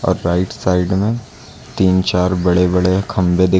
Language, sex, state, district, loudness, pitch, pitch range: Hindi, male, Uttar Pradesh, Lucknow, -16 LUFS, 95 Hz, 90-95 Hz